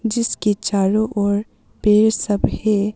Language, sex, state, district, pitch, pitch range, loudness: Hindi, female, Arunachal Pradesh, Papum Pare, 210 Hz, 205-220 Hz, -18 LUFS